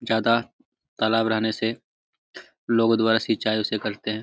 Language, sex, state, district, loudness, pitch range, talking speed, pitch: Hindi, male, Jharkhand, Jamtara, -23 LUFS, 110-115 Hz, 140 wpm, 110 Hz